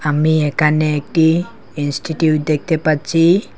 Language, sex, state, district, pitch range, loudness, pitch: Bengali, male, Assam, Hailakandi, 150-165 Hz, -16 LUFS, 155 Hz